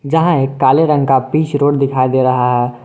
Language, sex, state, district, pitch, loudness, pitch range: Hindi, male, Jharkhand, Garhwa, 135 Hz, -13 LUFS, 130-145 Hz